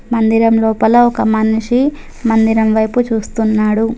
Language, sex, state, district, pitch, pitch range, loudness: Telugu, female, Telangana, Adilabad, 225 Hz, 220-235 Hz, -13 LUFS